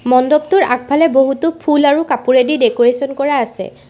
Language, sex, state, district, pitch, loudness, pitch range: Assamese, female, Assam, Sonitpur, 275 Hz, -13 LUFS, 250-300 Hz